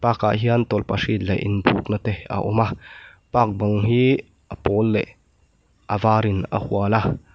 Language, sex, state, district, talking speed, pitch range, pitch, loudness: Mizo, male, Mizoram, Aizawl, 195 wpm, 100-115 Hz, 105 Hz, -21 LUFS